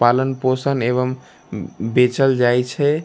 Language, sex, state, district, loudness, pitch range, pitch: Maithili, male, Bihar, Darbhanga, -18 LUFS, 125-135 Hz, 125 Hz